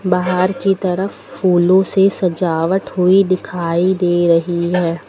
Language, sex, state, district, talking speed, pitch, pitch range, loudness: Hindi, female, Uttar Pradesh, Lucknow, 130 wpm, 180 Hz, 175-190 Hz, -15 LUFS